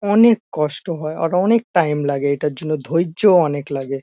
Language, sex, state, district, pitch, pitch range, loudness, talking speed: Bengali, male, West Bengal, North 24 Parganas, 155 Hz, 145-180 Hz, -18 LUFS, 180 wpm